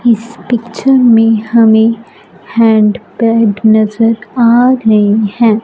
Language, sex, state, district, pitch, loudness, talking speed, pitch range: Hindi, female, Punjab, Fazilka, 225 Hz, -10 LUFS, 95 wpm, 220-235 Hz